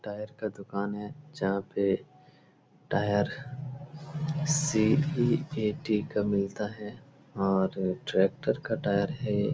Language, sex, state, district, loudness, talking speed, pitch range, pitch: Hindi, male, Uttar Pradesh, Etah, -30 LUFS, 95 wpm, 100-140 Hz, 105 Hz